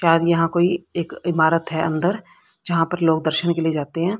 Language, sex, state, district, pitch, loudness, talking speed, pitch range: Hindi, female, Haryana, Rohtak, 165 Hz, -20 LUFS, 215 wpm, 160-175 Hz